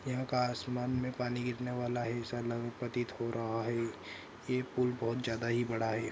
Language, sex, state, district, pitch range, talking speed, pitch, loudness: Hindi, male, Andhra Pradesh, Anantapur, 115-125 Hz, 175 wpm, 120 Hz, -36 LUFS